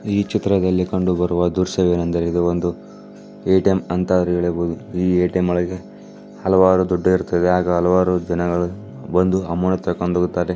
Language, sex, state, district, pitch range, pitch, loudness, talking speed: Kannada, male, Karnataka, Dakshina Kannada, 90-95 Hz, 90 Hz, -19 LUFS, 120 wpm